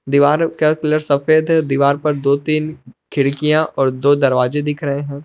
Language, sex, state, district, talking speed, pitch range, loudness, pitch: Hindi, male, Jharkhand, Palamu, 170 wpm, 140-155 Hz, -16 LUFS, 145 Hz